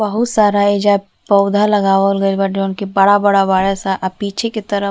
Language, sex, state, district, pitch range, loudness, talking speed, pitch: Bhojpuri, female, Uttar Pradesh, Ghazipur, 195-205 Hz, -14 LUFS, 210 wpm, 200 Hz